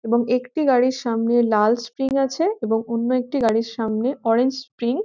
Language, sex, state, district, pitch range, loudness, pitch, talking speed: Bengali, female, West Bengal, Jhargram, 230-260 Hz, -21 LUFS, 240 Hz, 180 wpm